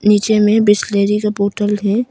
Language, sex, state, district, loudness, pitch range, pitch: Hindi, female, Arunachal Pradesh, Longding, -14 LUFS, 205-210 Hz, 210 Hz